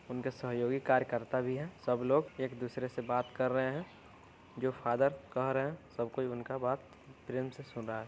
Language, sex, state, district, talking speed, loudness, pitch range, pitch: Hindi, male, Uttar Pradesh, Varanasi, 200 wpm, -35 LUFS, 125-130 Hz, 130 Hz